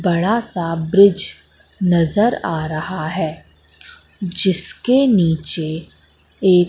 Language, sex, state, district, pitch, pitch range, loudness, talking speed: Hindi, female, Madhya Pradesh, Katni, 175 Hz, 160-190 Hz, -16 LUFS, 90 wpm